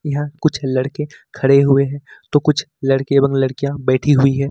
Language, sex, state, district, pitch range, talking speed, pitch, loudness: Hindi, male, Jharkhand, Ranchi, 135-145 Hz, 185 wpm, 140 Hz, -17 LUFS